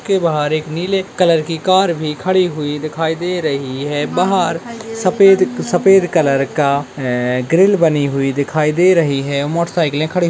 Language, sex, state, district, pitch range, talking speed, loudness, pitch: Hindi, male, Rajasthan, Nagaur, 145-185 Hz, 175 wpm, -15 LUFS, 165 Hz